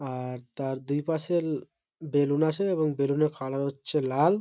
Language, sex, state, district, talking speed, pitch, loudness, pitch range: Bengali, male, West Bengal, Malda, 165 wpm, 145 Hz, -28 LUFS, 135-160 Hz